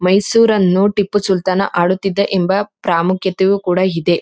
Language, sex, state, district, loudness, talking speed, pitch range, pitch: Kannada, female, Karnataka, Mysore, -15 LUFS, 115 wpm, 185-200 Hz, 190 Hz